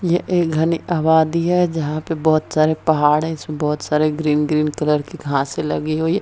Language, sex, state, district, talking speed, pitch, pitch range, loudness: Hindi, female, Bihar, Jahanabad, 220 wpm, 155 Hz, 150-165 Hz, -18 LUFS